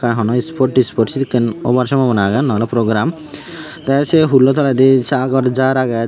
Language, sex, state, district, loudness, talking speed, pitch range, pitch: Chakma, male, Tripura, Unakoti, -14 LUFS, 185 wpm, 120-135 Hz, 130 Hz